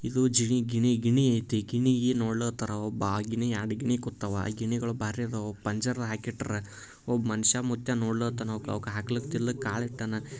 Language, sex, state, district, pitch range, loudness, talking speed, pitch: Kannada, male, Karnataka, Bijapur, 110-120 Hz, -29 LUFS, 160 wpm, 115 Hz